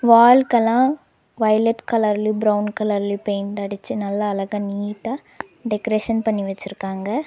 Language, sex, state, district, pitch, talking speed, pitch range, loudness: Tamil, female, Tamil Nadu, Nilgiris, 215 Hz, 105 wpm, 200-230 Hz, -20 LUFS